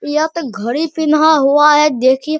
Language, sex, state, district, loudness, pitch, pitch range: Hindi, male, Bihar, Araria, -13 LUFS, 300 Hz, 275-310 Hz